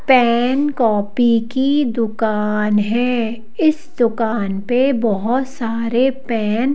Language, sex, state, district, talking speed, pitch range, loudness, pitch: Hindi, female, Madhya Pradesh, Bhopal, 105 wpm, 220-260 Hz, -17 LUFS, 235 Hz